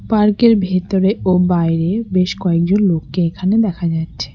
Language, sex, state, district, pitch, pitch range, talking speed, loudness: Bengali, female, West Bengal, Cooch Behar, 185 Hz, 170-200 Hz, 150 wpm, -16 LUFS